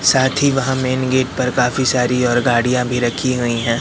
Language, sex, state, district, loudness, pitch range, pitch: Hindi, male, Madhya Pradesh, Katni, -16 LUFS, 120-130 Hz, 125 Hz